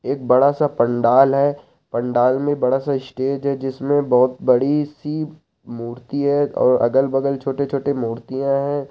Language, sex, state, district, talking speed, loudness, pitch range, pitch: Hindi, male, Rajasthan, Nagaur, 140 wpm, -19 LUFS, 125-140 Hz, 135 Hz